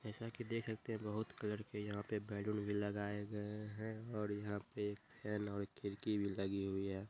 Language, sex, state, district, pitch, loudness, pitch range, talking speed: Hindi, male, Bihar, Gopalganj, 105 Hz, -44 LUFS, 100-110 Hz, 210 wpm